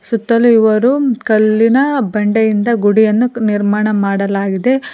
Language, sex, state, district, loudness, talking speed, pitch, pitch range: Kannada, female, Karnataka, Koppal, -13 LUFS, 85 wpm, 220 Hz, 210-240 Hz